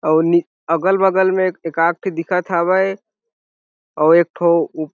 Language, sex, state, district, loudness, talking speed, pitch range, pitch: Chhattisgarhi, male, Chhattisgarh, Jashpur, -16 LUFS, 170 wpm, 165-190 Hz, 170 Hz